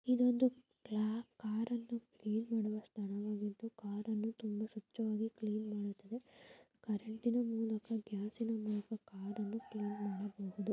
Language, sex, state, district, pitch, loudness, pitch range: Kannada, female, Karnataka, Mysore, 215 Hz, -40 LUFS, 210-230 Hz